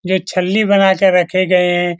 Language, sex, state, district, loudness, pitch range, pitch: Hindi, male, Bihar, Lakhisarai, -13 LUFS, 180-190 Hz, 185 Hz